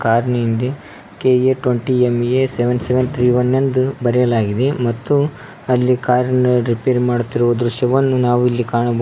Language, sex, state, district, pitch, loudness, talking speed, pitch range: Kannada, male, Karnataka, Koppal, 125 Hz, -16 LUFS, 115 wpm, 120-130 Hz